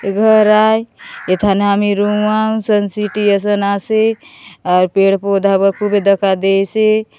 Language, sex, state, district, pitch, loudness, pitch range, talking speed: Halbi, female, Chhattisgarh, Bastar, 205 Hz, -13 LUFS, 195-215 Hz, 125 wpm